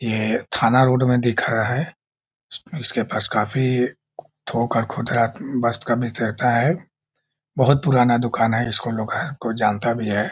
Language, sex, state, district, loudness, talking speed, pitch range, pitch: Hindi, male, Bihar, Jahanabad, -20 LUFS, 175 wpm, 115-130 Hz, 120 Hz